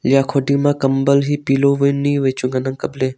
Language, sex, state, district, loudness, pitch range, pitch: Wancho, male, Arunachal Pradesh, Longding, -17 LUFS, 135-140 Hz, 140 Hz